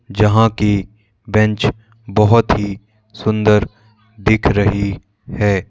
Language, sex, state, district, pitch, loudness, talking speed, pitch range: Hindi, male, Madhya Pradesh, Bhopal, 105 Hz, -16 LUFS, 95 wpm, 105-110 Hz